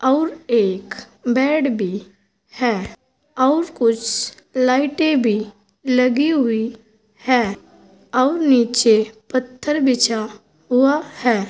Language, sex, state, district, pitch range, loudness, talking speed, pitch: Hindi, female, Uttar Pradesh, Saharanpur, 220-265 Hz, -18 LUFS, 95 wpm, 245 Hz